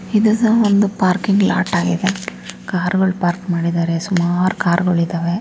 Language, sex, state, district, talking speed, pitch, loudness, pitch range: Kannada, female, Karnataka, Raichur, 135 wpm, 185 Hz, -17 LUFS, 170-195 Hz